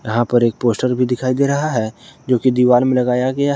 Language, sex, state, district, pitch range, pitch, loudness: Hindi, male, Jharkhand, Garhwa, 120-130 Hz, 125 Hz, -16 LUFS